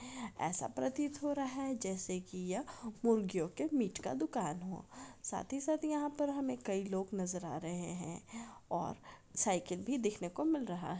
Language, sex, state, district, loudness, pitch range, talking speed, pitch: Hindi, female, Bihar, Araria, -39 LUFS, 180-270 Hz, 185 wpm, 205 Hz